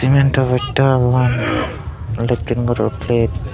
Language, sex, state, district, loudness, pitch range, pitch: Chakma, male, Tripura, Dhalai, -17 LUFS, 110-125 Hz, 120 Hz